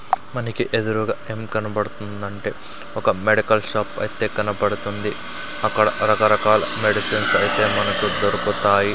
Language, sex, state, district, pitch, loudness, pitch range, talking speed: Telugu, male, Andhra Pradesh, Sri Satya Sai, 105 Hz, -20 LUFS, 105-110 Hz, 100 wpm